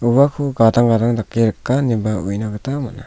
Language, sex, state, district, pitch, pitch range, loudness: Garo, male, Meghalaya, South Garo Hills, 115 Hz, 110-130 Hz, -17 LUFS